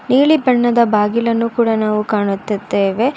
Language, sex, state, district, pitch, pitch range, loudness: Kannada, female, Karnataka, Bangalore, 230 Hz, 210-240 Hz, -15 LUFS